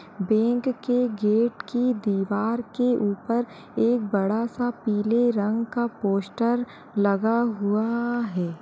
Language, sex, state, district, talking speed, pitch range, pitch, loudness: Hindi, female, Uttar Pradesh, Jalaun, 120 wpm, 210-240 Hz, 230 Hz, -24 LUFS